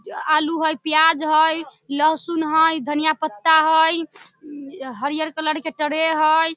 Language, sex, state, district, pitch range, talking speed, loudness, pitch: Maithili, female, Bihar, Samastipur, 310-320 Hz, 135 wpm, -19 LUFS, 315 Hz